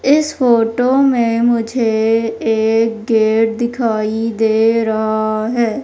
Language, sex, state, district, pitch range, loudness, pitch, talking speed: Hindi, female, Madhya Pradesh, Umaria, 220-240 Hz, -15 LUFS, 225 Hz, 105 wpm